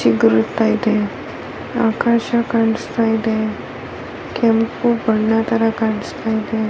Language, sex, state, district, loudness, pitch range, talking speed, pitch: Kannada, female, Karnataka, Dharwad, -18 LUFS, 220-230 Hz, 90 wpm, 225 Hz